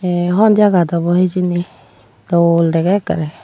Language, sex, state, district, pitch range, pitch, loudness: Chakma, female, Tripura, Dhalai, 165-185 Hz, 175 Hz, -14 LUFS